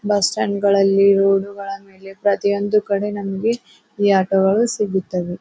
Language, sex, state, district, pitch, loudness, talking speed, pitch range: Kannada, female, Karnataka, Bijapur, 200 Hz, -18 LUFS, 120 wpm, 195-205 Hz